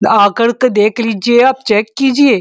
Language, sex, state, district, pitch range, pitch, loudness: Hindi, female, Uttar Pradesh, Muzaffarnagar, 215-255 Hz, 235 Hz, -11 LUFS